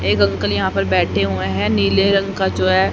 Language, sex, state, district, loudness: Hindi, female, Haryana, Rohtak, -17 LUFS